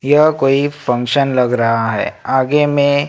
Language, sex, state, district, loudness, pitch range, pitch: Hindi, male, Maharashtra, Gondia, -15 LUFS, 125-145 Hz, 135 Hz